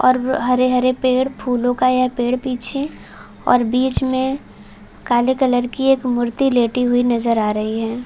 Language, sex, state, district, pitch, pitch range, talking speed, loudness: Hindi, female, Chhattisgarh, Balrampur, 250 Hz, 245-260 Hz, 185 wpm, -18 LUFS